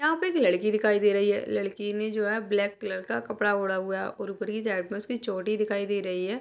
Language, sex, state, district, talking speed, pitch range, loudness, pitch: Hindi, female, Bihar, Purnia, 255 wpm, 200-215 Hz, -28 LUFS, 205 Hz